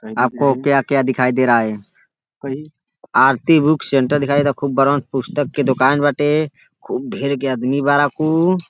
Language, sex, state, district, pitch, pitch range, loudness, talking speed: Bhojpuri, male, Uttar Pradesh, Deoria, 140 Hz, 135-150 Hz, -17 LUFS, 165 wpm